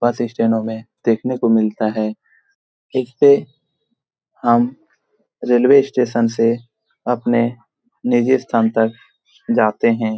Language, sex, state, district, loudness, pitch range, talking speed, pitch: Hindi, male, Bihar, Jamui, -17 LUFS, 115-130 Hz, 105 wpm, 120 Hz